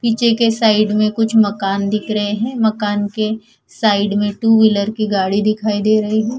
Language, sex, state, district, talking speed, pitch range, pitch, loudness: Hindi, female, Punjab, Fazilka, 195 wpm, 205-225 Hz, 215 Hz, -16 LUFS